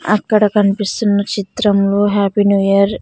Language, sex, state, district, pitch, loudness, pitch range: Telugu, female, Andhra Pradesh, Sri Satya Sai, 205 Hz, -14 LUFS, 200-210 Hz